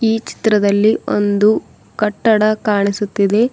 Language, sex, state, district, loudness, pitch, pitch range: Kannada, female, Karnataka, Bidar, -15 LUFS, 210 Hz, 205-220 Hz